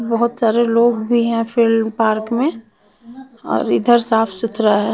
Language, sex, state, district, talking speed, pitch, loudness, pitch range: Hindi, female, Bihar, Patna, 160 wpm, 230 Hz, -16 LUFS, 225-235 Hz